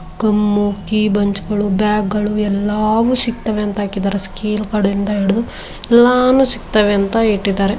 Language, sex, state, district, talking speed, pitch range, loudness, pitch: Kannada, female, Karnataka, Dharwad, 130 wpm, 200-220 Hz, -15 LUFS, 210 Hz